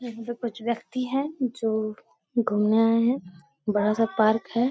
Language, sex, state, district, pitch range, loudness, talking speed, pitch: Hindi, female, Bihar, Supaul, 215-240 Hz, -25 LUFS, 150 wpm, 225 Hz